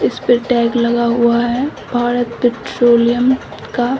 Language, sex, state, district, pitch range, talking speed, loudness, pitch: Hindi, female, Bihar, Samastipur, 235-245 Hz, 135 wpm, -15 LUFS, 240 Hz